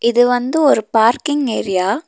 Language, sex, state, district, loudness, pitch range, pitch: Tamil, female, Tamil Nadu, Nilgiris, -15 LUFS, 225-290 Hz, 245 Hz